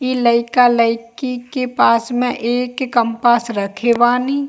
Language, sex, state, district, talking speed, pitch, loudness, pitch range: Hindi, female, Bihar, Kishanganj, 120 wpm, 240 Hz, -16 LUFS, 235-250 Hz